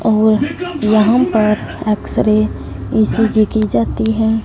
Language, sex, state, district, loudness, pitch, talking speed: Hindi, female, Punjab, Fazilka, -15 LUFS, 215 Hz, 120 wpm